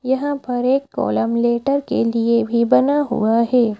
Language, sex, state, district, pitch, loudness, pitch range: Hindi, female, Madhya Pradesh, Bhopal, 245 Hz, -18 LUFS, 235-270 Hz